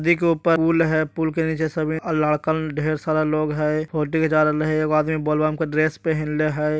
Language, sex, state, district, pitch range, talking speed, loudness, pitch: Magahi, male, Bihar, Jahanabad, 155-160 Hz, 245 wpm, -21 LUFS, 155 Hz